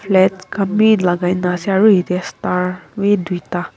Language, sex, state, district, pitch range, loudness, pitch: Nagamese, female, Nagaland, Kohima, 180-200 Hz, -16 LUFS, 185 Hz